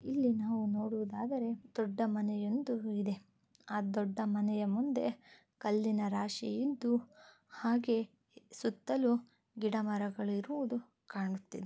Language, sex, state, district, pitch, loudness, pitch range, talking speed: Kannada, female, Karnataka, Bellary, 220 Hz, -36 LUFS, 210-240 Hz, 35 wpm